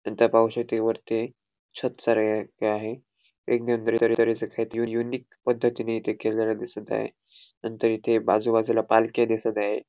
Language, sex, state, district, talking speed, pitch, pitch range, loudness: Marathi, male, Goa, North and South Goa, 115 wpm, 115 Hz, 110-115 Hz, -25 LUFS